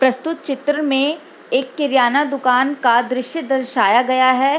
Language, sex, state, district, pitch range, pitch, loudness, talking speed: Hindi, female, Bihar, Lakhisarai, 255-295 Hz, 270 Hz, -17 LUFS, 145 wpm